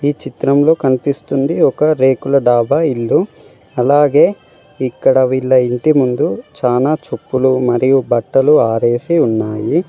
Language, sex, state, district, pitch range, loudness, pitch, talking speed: Telugu, male, Telangana, Mahabubabad, 125-145 Hz, -14 LUFS, 130 Hz, 110 wpm